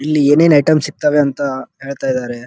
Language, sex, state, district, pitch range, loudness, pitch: Kannada, male, Karnataka, Dharwad, 135-150 Hz, -14 LUFS, 145 Hz